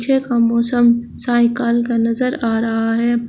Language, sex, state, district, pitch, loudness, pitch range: Hindi, male, Uttar Pradesh, Shamli, 235 Hz, -16 LUFS, 230-240 Hz